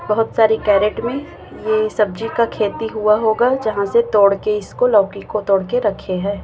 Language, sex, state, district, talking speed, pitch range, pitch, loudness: Hindi, female, Chhattisgarh, Raipur, 195 wpm, 205-225 Hz, 215 Hz, -17 LUFS